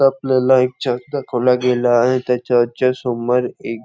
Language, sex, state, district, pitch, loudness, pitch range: Marathi, male, Maharashtra, Nagpur, 125 Hz, -17 LUFS, 125-130 Hz